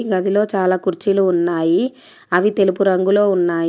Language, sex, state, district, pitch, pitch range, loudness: Telugu, female, Telangana, Komaram Bheem, 190 Hz, 180-200 Hz, -17 LUFS